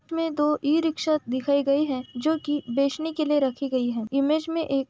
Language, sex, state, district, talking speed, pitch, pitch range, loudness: Hindi, female, Uttar Pradesh, Budaun, 230 wpm, 290 Hz, 270-310 Hz, -25 LUFS